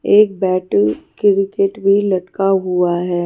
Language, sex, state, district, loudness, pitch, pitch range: Hindi, female, Haryana, Charkhi Dadri, -16 LUFS, 190 Hz, 180-195 Hz